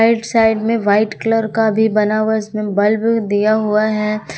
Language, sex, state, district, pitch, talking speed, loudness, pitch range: Hindi, female, Jharkhand, Ranchi, 215 Hz, 205 wpm, -16 LUFS, 210-225 Hz